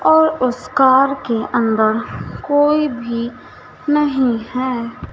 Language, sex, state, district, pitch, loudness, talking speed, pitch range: Hindi, female, Madhya Pradesh, Dhar, 255 Hz, -17 LUFS, 105 wpm, 235-290 Hz